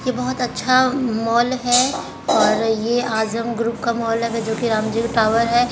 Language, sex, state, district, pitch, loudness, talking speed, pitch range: Hindi, female, Bihar, Jahanabad, 235 Hz, -19 LUFS, 180 wpm, 225-245 Hz